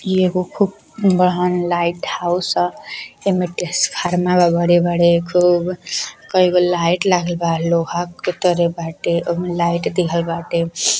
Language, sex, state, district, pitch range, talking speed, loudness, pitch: Bhojpuri, female, Uttar Pradesh, Deoria, 170-180 Hz, 125 wpm, -18 LUFS, 175 Hz